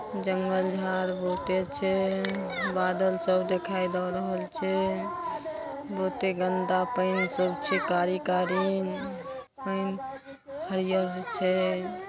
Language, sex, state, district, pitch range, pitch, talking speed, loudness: Maithili, female, Bihar, Darbhanga, 185-195 Hz, 185 Hz, 100 wpm, -29 LUFS